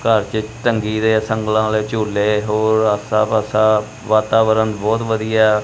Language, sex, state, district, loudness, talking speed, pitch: Punjabi, male, Punjab, Kapurthala, -17 LUFS, 140 wpm, 110 Hz